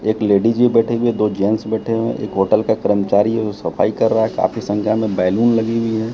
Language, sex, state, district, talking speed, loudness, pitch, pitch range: Hindi, male, Bihar, Katihar, 275 wpm, -17 LUFS, 110 Hz, 105-115 Hz